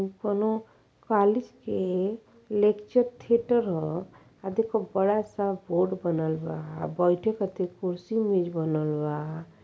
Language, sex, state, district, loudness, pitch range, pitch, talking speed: Bhojpuri, female, Uttar Pradesh, Ghazipur, -27 LUFS, 175-215 Hz, 195 Hz, 125 wpm